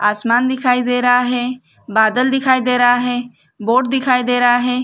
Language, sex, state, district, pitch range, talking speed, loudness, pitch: Hindi, female, Chhattisgarh, Bilaspur, 245-255 Hz, 185 wpm, -15 LUFS, 245 Hz